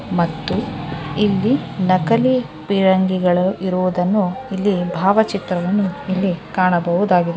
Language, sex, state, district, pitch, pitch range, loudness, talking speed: Kannada, female, Karnataka, Dharwad, 185 Hz, 175-200 Hz, -18 LUFS, 75 wpm